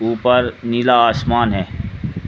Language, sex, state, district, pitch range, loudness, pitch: Hindi, male, Uttar Pradesh, Ghazipur, 105-125 Hz, -16 LUFS, 120 Hz